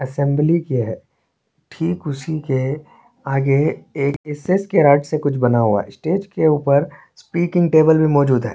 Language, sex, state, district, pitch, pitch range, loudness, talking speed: Hindi, male, Chhattisgarh, Korba, 145 Hz, 135-160 Hz, -18 LUFS, 160 wpm